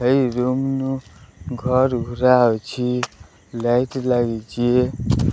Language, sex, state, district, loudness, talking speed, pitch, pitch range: Odia, male, Odisha, Sambalpur, -20 LUFS, 80 wpm, 125 Hz, 120-125 Hz